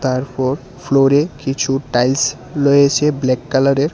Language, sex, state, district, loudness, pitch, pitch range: Bengali, male, Tripura, West Tripura, -16 LUFS, 135 Hz, 130-145 Hz